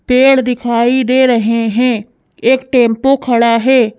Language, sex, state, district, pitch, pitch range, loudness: Hindi, female, Madhya Pradesh, Bhopal, 245 Hz, 235-260 Hz, -12 LUFS